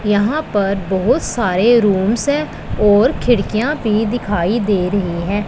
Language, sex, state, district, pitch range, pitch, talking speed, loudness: Hindi, female, Punjab, Pathankot, 195-235 Hz, 210 Hz, 140 wpm, -16 LUFS